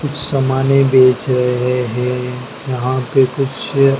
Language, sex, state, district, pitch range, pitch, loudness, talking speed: Hindi, male, Madhya Pradesh, Dhar, 125-135 Hz, 130 Hz, -15 LUFS, 105 wpm